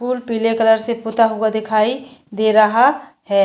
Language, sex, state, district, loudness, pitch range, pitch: Hindi, female, Uttar Pradesh, Jyotiba Phule Nagar, -16 LUFS, 220-245 Hz, 225 Hz